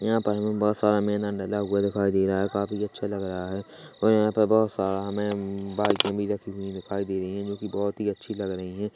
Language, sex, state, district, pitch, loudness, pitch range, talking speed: Hindi, male, Chhattisgarh, Korba, 100 Hz, -27 LUFS, 100-105 Hz, 255 wpm